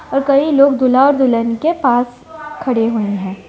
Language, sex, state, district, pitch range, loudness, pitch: Hindi, female, Bihar, Vaishali, 230-280 Hz, -14 LUFS, 260 Hz